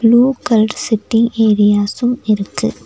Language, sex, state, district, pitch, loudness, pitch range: Tamil, female, Tamil Nadu, Nilgiris, 225 Hz, -14 LUFS, 210-240 Hz